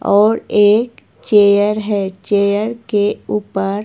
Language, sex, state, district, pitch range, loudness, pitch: Hindi, female, Himachal Pradesh, Shimla, 200-210 Hz, -15 LUFS, 205 Hz